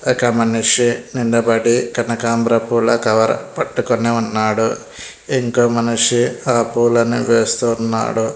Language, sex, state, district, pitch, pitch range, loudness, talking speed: Telugu, male, Telangana, Hyderabad, 115 Hz, 115-120 Hz, -16 LUFS, 95 wpm